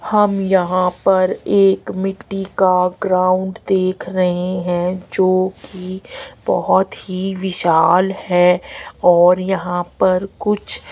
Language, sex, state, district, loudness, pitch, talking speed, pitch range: Hindi, female, Haryana, Rohtak, -17 LUFS, 185 Hz, 110 wpm, 180-195 Hz